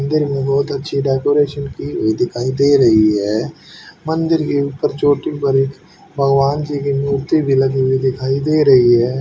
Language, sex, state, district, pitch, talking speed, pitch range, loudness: Hindi, male, Haryana, Jhajjar, 140 Hz, 175 wpm, 130-145 Hz, -16 LUFS